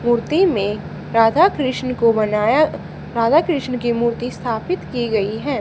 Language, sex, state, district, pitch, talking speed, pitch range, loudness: Hindi, female, Haryana, Charkhi Dadri, 235 Hz, 150 wpm, 225-255 Hz, -18 LUFS